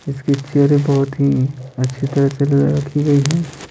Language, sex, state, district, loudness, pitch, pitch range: Hindi, male, Bihar, Patna, -17 LUFS, 140 Hz, 140-145 Hz